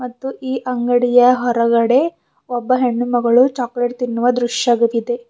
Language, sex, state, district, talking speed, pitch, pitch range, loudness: Kannada, female, Karnataka, Bidar, 115 wpm, 245 Hz, 240-255 Hz, -16 LUFS